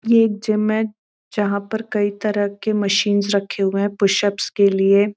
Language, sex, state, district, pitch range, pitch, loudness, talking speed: Hindi, female, Uttar Pradesh, Deoria, 200-215 Hz, 205 Hz, -19 LUFS, 185 wpm